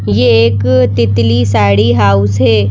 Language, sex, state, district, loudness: Hindi, female, Madhya Pradesh, Bhopal, -10 LUFS